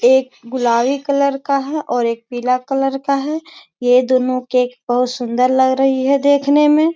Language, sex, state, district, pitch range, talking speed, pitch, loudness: Hindi, female, Bihar, Jamui, 250-280 Hz, 180 wpm, 260 Hz, -16 LUFS